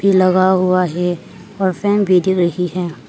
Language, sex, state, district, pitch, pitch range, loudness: Hindi, female, Arunachal Pradesh, Papum Pare, 185 Hz, 180-190 Hz, -16 LUFS